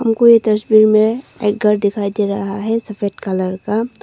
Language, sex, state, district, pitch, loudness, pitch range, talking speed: Hindi, female, Arunachal Pradesh, Longding, 210 Hz, -15 LUFS, 200-225 Hz, 195 wpm